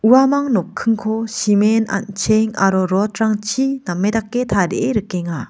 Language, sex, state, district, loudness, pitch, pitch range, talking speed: Garo, female, Meghalaya, West Garo Hills, -17 LUFS, 215 Hz, 195-225 Hz, 110 wpm